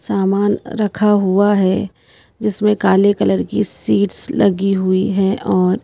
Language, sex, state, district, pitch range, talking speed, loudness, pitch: Hindi, female, Madhya Pradesh, Bhopal, 190-205 Hz, 135 wpm, -16 LUFS, 200 Hz